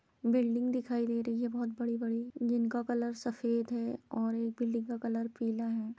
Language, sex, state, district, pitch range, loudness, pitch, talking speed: Hindi, female, Chhattisgarh, Rajnandgaon, 230-240 Hz, -34 LUFS, 235 Hz, 180 wpm